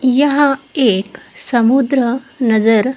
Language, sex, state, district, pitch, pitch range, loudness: Hindi, female, Odisha, Khordha, 255 Hz, 230-270 Hz, -14 LUFS